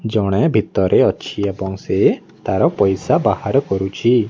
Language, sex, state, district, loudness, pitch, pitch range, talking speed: Odia, male, Odisha, Nuapada, -17 LUFS, 100 Hz, 95-110 Hz, 125 wpm